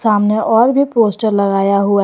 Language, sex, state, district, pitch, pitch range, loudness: Hindi, female, Jharkhand, Garhwa, 215 Hz, 200-230 Hz, -13 LUFS